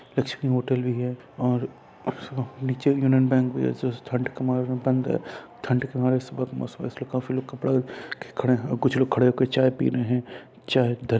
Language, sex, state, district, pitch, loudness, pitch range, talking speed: Hindi, male, Bihar, Purnia, 130 Hz, -25 LUFS, 125-130 Hz, 215 wpm